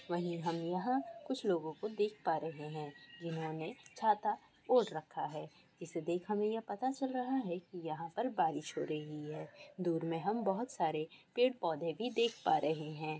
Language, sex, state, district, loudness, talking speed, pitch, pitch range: Hindi, female, Goa, North and South Goa, -38 LUFS, 190 wpm, 175 Hz, 160-230 Hz